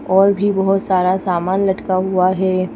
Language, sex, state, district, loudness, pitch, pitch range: Hindi, female, Madhya Pradesh, Bhopal, -16 LUFS, 190 Hz, 185-195 Hz